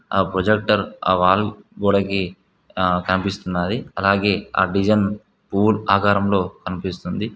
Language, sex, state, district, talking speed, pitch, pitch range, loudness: Telugu, male, Telangana, Mahabubabad, 105 wpm, 100 Hz, 95-100 Hz, -20 LUFS